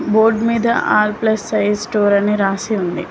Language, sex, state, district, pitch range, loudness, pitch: Telugu, female, Telangana, Mahabubabad, 205-225 Hz, -16 LUFS, 210 Hz